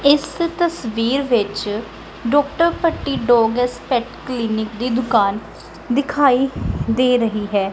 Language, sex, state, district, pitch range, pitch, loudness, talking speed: Punjabi, female, Punjab, Kapurthala, 225-285 Hz, 245 Hz, -19 LUFS, 110 wpm